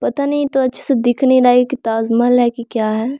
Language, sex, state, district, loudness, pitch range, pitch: Hindi, female, Bihar, Samastipur, -15 LUFS, 235-265 Hz, 245 Hz